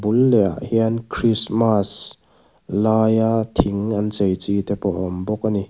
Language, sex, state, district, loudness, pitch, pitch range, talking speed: Mizo, male, Mizoram, Aizawl, -20 LUFS, 105 Hz, 100-115 Hz, 170 wpm